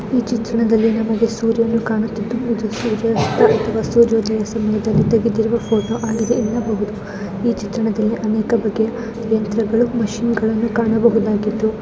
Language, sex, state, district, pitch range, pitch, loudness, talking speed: Kannada, female, Karnataka, Chamarajanagar, 220-230 Hz, 225 Hz, -18 LUFS, 95 wpm